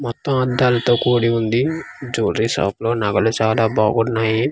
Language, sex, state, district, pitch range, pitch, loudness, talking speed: Telugu, male, Andhra Pradesh, Manyam, 110-125 Hz, 115 Hz, -18 LUFS, 135 wpm